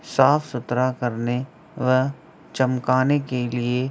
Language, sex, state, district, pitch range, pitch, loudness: Hindi, male, Bihar, Begusarai, 125-135 Hz, 130 Hz, -22 LUFS